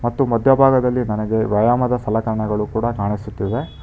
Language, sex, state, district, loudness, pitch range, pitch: Kannada, male, Karnataka, Bangalore, -18 LUFS, 105-125 Hz, 115 Hz